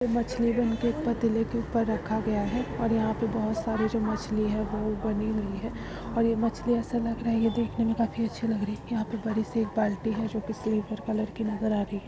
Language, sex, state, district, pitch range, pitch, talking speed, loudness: Hindi, female, Uttar Pradesh, Jalaun, 215-230 Hz, 220 Hz, 260 wpm, -29 LUFS